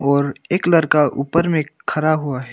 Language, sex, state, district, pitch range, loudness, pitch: Hindi, male, Arunachal Pradesh, Longding, 140-165 Hz, -18 LUFS, 150 Hz